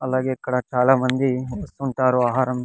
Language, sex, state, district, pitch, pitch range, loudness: Telugu, male, Andhra Pradesh, Sri Satya Sai, 130 Hz, 125-130 Hz, -21 LUFS